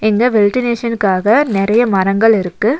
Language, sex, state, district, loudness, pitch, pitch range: Tamil, female, Tamil Nadu, Nilgiris, -13 LUFS, 215 Hz, 200-235 Hz